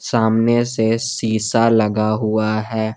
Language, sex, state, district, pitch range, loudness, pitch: Hindi, male, Jharkhand, Garhwa, 110-115 Hz, -17 LUFS, 110 Hz